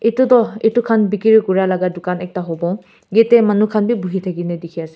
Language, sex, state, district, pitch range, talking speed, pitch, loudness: Nagamese, male, Nagaland, Kohima, 180-225 Hz, 230 wpm, 205 Hz, -16 LUFS